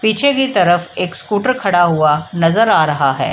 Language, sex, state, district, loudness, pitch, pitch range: Hindi, female, Bihar, Samastipur, -13 LUFS, 175 Hz, 160-220 Hz